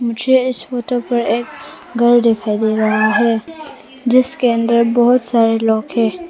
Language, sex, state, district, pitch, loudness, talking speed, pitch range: Hindi, female, Arunachal Pradesh, Papum Pare, 240 Hz, -15 LUFS, 150 wpm, 225-255 Hz